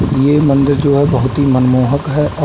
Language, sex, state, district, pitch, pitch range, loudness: Hindi, male, Uttar Pradesh, Budaun, 140 Hz, 135-145 Hz, -12 LUFS